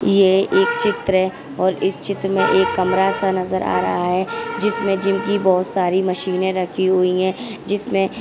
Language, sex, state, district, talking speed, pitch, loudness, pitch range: Hindi, female, Maharashtra, Dhule, 185 wpm, 190 Hz, -18 LUFS, 185-195 Hz